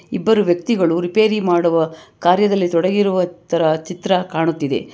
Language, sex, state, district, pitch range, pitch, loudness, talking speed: Kannada, female, Karnataka, Bangalore, 165-200 Hz, 175 Hz, -17 LUFS, 110 wpm